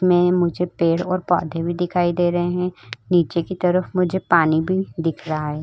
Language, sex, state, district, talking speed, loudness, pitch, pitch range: Hindi, female, Uttar Pradesh, Budaun, 200 wpm, -20 LUFS, 175 Hz, 165-180 Hz